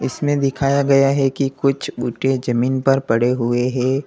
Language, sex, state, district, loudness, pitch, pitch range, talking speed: Hindi, male, Uttar Pradesh, Lalitpur, -18 LUFS, 135 Hz, 125-140 Hz, 175 wpm